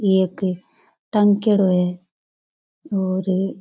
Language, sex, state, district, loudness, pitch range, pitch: Rajasthani, female, Rajasthan, Churu, -20 LUFS, 185-200 Hz, 190 Hz